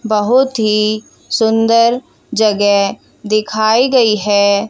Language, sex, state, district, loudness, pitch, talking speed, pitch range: Hindi, female, Haryana, Jhajjar, -13 LUFS, 215 Hz, 90 wpm, 210-230 Hz